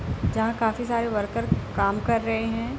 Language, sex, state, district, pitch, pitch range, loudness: Hindi, female, Bihar, East Champaran, 225 Hz, 220-230 Hz, -25 LUFS